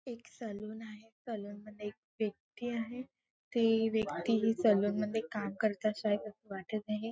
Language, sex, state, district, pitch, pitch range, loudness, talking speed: Marathi, female, Maharashtra, Chandrapur, 215 Hz, 210-225 Hz, -35 LUFS, 150 wpm